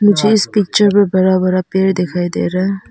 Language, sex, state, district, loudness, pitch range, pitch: Hindi, female, Arunachal Pradesh, Papum Pare, -14 LUFS, 185-205 Hz, 190 Hz